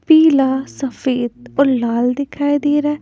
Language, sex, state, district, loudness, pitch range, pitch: Hindi, female, Punjab, Pathankot, -16 LUFS, 255-290 Hz, 275 Hz